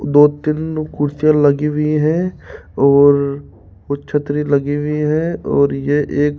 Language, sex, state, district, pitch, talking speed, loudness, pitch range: Hindi, male, Rajasthan, Jaipur, 145 Hz, 150 wpm, -16 LUFS, 140-150 Hz